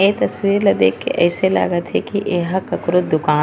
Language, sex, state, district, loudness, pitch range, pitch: Chhattisgarhi, female, Chhattisgarh, Raigarh, -17 LUFS, 170-200 Hz, 180 Hz